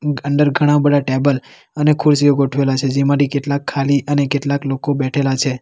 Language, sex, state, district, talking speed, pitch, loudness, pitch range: Gujarati, male, Gujarat, Valsad, 170 wpm, 140 Hz, -16 LUFS, 135-145 Hz